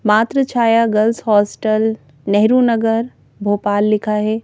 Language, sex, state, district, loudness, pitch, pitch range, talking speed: Hindi, female, Madhya Pradesh, Bhopal, -16 LUFS, 215 Hz, 210-230 Hz, 120 wpm